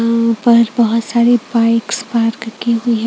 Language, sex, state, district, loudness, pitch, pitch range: Hindi, female, Chhattisgarh, Raipur, -14 LUFS, 230 Hz, 230-235 Hz